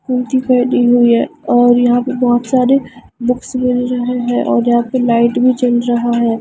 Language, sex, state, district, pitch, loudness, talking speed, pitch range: Hindi, female, Himachal Pradesh, Shimla, 245 Hz, -13 LUFS, 195 wpm, 240-250 Hz